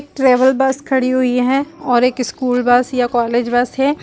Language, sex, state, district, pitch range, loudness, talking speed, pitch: Hindi, female, Chhattisgarh, Raigarh, 245-270 Hz, -15 LUFS, 195 wpm, 255 Hz